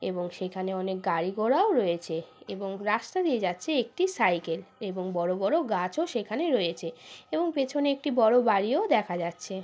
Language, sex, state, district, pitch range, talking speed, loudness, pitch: Bengali, female, West Bengal, Purulia, 180-270 Hz, 155 wpm, -28 LUFS, 195 Hz